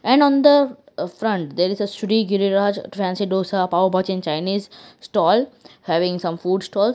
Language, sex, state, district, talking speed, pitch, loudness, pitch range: English, female, Gujarat, Valsad, 165 wpm, 195 Hz, -20 LUFS, 185-220 Hz